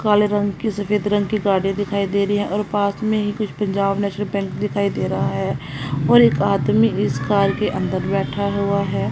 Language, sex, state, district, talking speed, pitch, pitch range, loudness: Hindi, female, Punjab, Kapurthala, 215 wpm, 200 Hz, 195-205 Hz, -20 LUFS